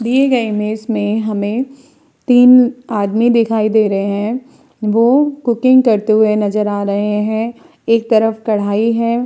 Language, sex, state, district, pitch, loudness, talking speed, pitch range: Hindi, female, Uttar Pradesh, Hamirpur, 225 Hz, -14 LUFS, 150 wpm, 210-245 Hz